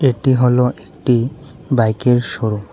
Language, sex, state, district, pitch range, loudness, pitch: Bengali, male, Tripura, West Tripura, 115-135 Hz, -16 LUFS, 125 Hz